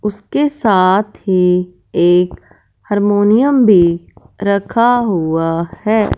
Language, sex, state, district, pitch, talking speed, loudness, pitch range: Hindi, female, Punjab, Fazilka, 200 Hz, 85 wpm, -14 LUFS, 175-215 Hz